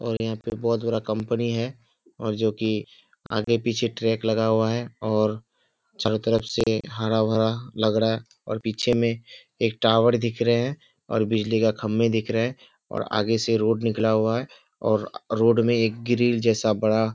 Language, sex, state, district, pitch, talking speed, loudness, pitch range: Hindi, male, Bihar, Kishanganj, 115 Hz, 180 wpm, -24 LUFS, 110-115 Hz